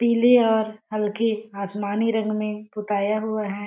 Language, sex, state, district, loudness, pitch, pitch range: Hindi, female, Chhattisgarh, Balrampur, -23 LUFS, 215 Hz, 210-220 Hz